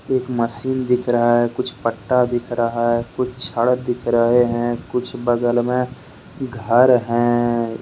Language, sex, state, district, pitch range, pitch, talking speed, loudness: Hindi, male, Jharkhand, Deoghar, 120-125 Hz, 120 Hz, 155 wpm, -19 LUFS